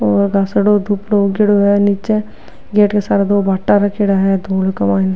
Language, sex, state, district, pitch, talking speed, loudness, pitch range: Rajasthani, female, Rajasthan, Nagaur, 200 Hz, 45 wpm, -14 LUFS, 195-205 Hz